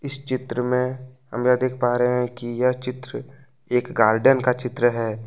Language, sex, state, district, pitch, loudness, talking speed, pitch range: Hindi, male, Jharkhand, Ranchi, 125 Hz, -22 LUFS, 195 wpm, 120-130 Hz